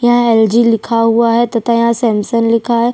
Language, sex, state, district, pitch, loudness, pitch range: Hindi, female, Chhattisgarh, Sukma, 230 Hz, -12 LUFS, 230-235 Hz